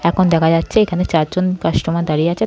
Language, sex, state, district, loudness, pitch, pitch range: Bengali, female, West Bengal, North 24 Parganas, -16 LUFS, 170 Hz, 165-185 Hz